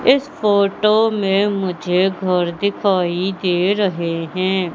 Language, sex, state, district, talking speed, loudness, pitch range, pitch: Hindi, female, Madhya Pradesh, Katni, 115 wpm, -18 LUFS, 180-200 Hz, 190 Hz